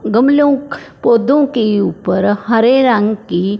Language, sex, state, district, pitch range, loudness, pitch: Hindi, female, Punjab, Fazilka, 205-270 Hz, -13 LUFS, 225 Hz